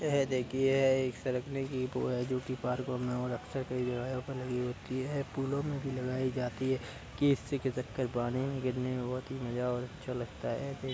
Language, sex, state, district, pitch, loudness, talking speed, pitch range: Hindi, male, Uttar Pradesh, Deoria, 130 Hz, -34 LUFS, 225 wpm, 125-135 Hz